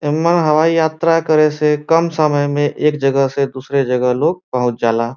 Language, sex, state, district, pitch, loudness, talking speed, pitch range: Bhojpuri, male, Uttar Pradesh, Varanasi, 150 Hz, -15 LUFS, 185 wpm, 135-160 Hz